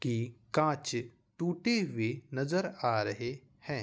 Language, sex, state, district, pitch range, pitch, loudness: Hindi, male, Bihar, Vaishali, 120-155 Hz, 130 Hz, -33 LUFS